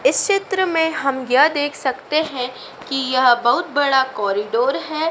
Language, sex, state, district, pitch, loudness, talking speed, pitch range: Hindi, female, Madhya Pradesh, Dhar, 285 Hz, -18 LUFS, 165 wpm, 260-320 Hz